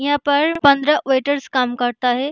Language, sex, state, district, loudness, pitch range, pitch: Hindi, female, Bihar, Gaya, -17 LUFS, 255-290 Hz, 280 Hz